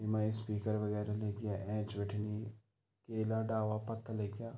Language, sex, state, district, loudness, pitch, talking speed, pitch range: Garhwali, male, Uttarakhand, Tehri Garhwal, -38 LUFS, 110 Hz, 130 wpm, 105-110 Hz